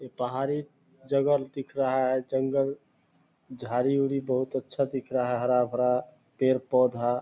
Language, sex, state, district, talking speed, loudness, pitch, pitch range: Hindi, male, Bihar, Purnia, 135 wpm, -27 LUFS, 130 Hz, 125-135 Hz